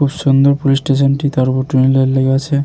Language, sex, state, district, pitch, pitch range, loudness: Bengali, male, West Bengal, Jalpaiguri, 135 Hz, 135-140 Hz, -13 LUFS